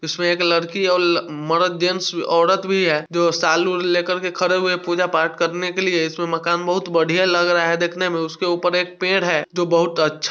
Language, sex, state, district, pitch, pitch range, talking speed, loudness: Hindi, male, Bihar, Sitamarhi, 175 Hz, 170-180 Hz, 225 wpm, -19 LUFS